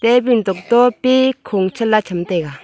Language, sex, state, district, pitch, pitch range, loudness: Wancho, female, Arunachal Pradesh, Longding, 220 Hz, 185-245 Hz, -16 LUFS